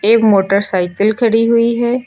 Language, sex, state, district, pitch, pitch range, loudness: Hindi, female, Uttar Pradesh, Lucknow, 225 Hz, 200-235 Hz, -12 LUFS